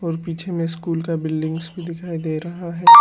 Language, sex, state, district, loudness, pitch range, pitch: Hindi, male, Arunachal Pradesh, Lower Dibang Valley, -21 LUFS, 160-170 Hz, 165 Hz